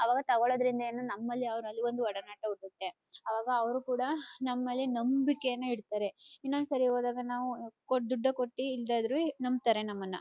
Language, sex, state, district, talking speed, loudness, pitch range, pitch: Kannada, female, Karnataka, Chamarajanagar, 125 wpm, -33 LUFS, 230-255 Hz, 245 Hz